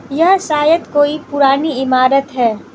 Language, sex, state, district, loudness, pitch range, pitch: Hindi, female, Manipur, Imphal West, -13 LUFS, 265-305 Hz, 285 Hz